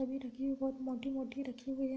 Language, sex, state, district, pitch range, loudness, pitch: Hindi, female, Uttar Pradesh, Deoria, 260-270 Hz, -39 LUFS, 265 Hz